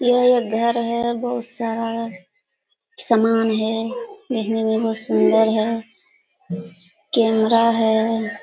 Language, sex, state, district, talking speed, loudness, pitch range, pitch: Hindi, female, Bihar, Kishanganj, 105 wpm, -20 LUFS, 220-235 Hz, 225 Hz